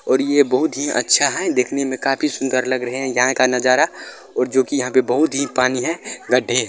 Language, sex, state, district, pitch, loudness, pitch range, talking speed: Maithili, male, Bihar, Supaul, 130 Hz, -18 LUFS, 125-140 Hz, 235 wpm